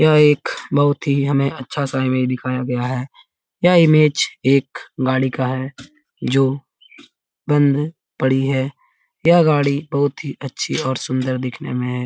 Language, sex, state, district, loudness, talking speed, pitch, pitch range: Hindi, male, Bihar, Lakhisarai, -18 LUFS, 155 wpm, 135 Hz, 130-145 Hz